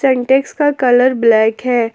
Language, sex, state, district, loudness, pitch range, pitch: Hindi, female, Jharkhand, Palamu, -13 LUFS, 235-265 Hz, 250 Hz